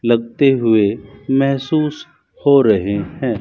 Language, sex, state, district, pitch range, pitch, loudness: Hindi, male, Rajasthan, Bikaner, 110-140 Hz, 125 Hz, -16 LUFS